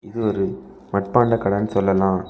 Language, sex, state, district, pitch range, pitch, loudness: Tamil, male, Tamil Nadu, Kanyakumari, 95-110 Hz, 100 Hz, -20 LUFS